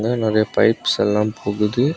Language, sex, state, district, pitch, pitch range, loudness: Tamil, male, Tamil Nadu, Kanyakumari, 110 Hz, 105-120 Hz, -19 LUFS